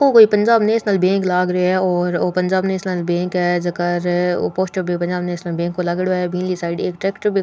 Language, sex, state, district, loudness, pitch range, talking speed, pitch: Rajasthani, female, Rajasthan, Nagaur, -18 LUFS, 175-190 Hz, 240 wpm, 180 Hz